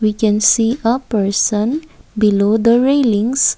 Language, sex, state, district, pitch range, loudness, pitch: English, female, Assam, Kamrup Metropolitan, 210-240 Hz, -14 LUFS, 225 Hz